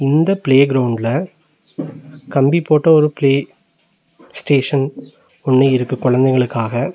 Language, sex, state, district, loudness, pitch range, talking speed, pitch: Tamil, male, Tamil Nadu, Nilgiris, -15 LUFS, 130-150 Hz, 95 wpm, 135 Hz